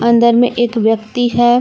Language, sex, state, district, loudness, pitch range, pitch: Hindi, female, Jharkhand, Palamu, -13 LUFS, 235-240 Hz, 235 Hz